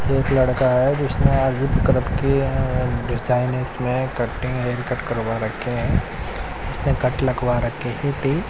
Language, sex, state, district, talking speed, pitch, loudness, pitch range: Hindi, male, Odisha, Nuapada, 160 wpm, 125 Hz, -21 LUFS, 120-135 Hz